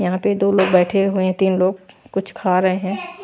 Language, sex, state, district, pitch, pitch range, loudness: Hindi, female, Chhattisgarh, Raipur, 190 Hz, 185-195 Hz, -18 LUFS